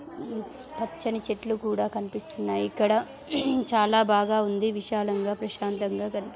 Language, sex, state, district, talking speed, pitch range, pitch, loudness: Telugu, female, Telangana, Nalgonda, 95 wpm, 205-230 Hz, 215 Hz, -27 LUFS